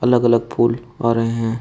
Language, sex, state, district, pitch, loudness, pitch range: Hindi, male, Uttar Pradesh, Shamli, 115 Hz, -18 LUFS, 115-120 Hz